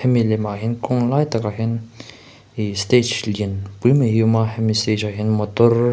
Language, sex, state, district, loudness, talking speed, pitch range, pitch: Mizo, male, Mizoram, Aizawl, -19 LUFS, 210 wpm, 105-120 Hz, 110 Hz